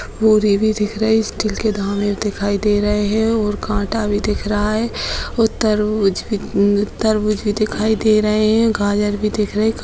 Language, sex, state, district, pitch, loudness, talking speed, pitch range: Hindi, female, Bihar, Bhagalpur, 210 Hz, -17 LUFS, 195 wpm, 205-220 Hz